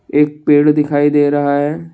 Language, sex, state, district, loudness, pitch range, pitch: Hindi, male, Assam, Kamrup Metropolitan, -13 LUFS, 145-150 Hz, 145 Hz